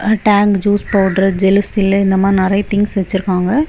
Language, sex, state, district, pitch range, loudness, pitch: Tamil, female, Tamil Nadu, Kanyakumari, 195-205 Hz, -14 LUFS, 195 Hz